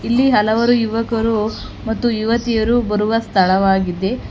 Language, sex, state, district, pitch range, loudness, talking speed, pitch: Kannada, female, Karnataka, Bangalore, 210-235 Hz, -17 LUFS, 95 wpm, 225 Hz